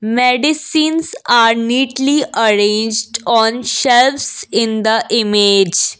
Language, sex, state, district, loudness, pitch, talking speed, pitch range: English, female, Assam, Kamrup Metropolitan, -13 LUFS, 230 Hz, 90 wpm, 220-265 Hz